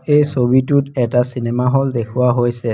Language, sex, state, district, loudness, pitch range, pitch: Assamese, female, Assam, Kamrup Metropolitan, -16 LUFS, 120-135 Hz, 125 Hz